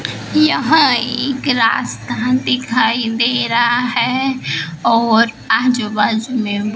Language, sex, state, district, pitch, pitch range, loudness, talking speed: Hindi, female, Maharashtra, Gondia, 240 Hz, 225-255 Hz, -15 LUFS, 100 wpm